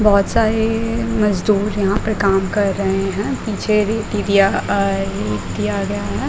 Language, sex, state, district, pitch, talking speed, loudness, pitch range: Hindi, female, Uttar Pradesh, Muzaffarnagar, 200 Hz, 135 wpm, -18 LUFS, 195-215 Hz